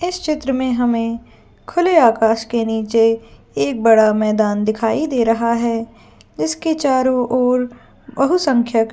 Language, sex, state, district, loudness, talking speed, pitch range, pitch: Hindi, female, Jharkhand, Jamtara, -17 LUFS, 130 wpm, 225-260 Hz, 230 Hz